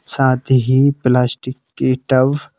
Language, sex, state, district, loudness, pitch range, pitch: Hindi, male, Madhya Pradesh, Bhopal, -15 LUFS, 130-135 Hz, 130 Hz